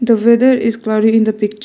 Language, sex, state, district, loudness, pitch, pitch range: English, female, Arunachal Pradesh, Lower Dibang Valley, -13 LUFS, 225 Hz, 215-235 Hz